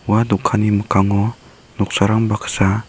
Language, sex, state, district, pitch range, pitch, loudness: Garo, male, Meghalaya, South Garo Hills, 100-110 Hz, 105 Hz, -17 LUFS